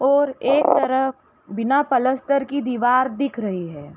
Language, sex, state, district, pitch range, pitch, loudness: Hindi, female, Uttar Pradesh, Hamirpur, 235-275 Hz, 260 Hz, -20 LUFS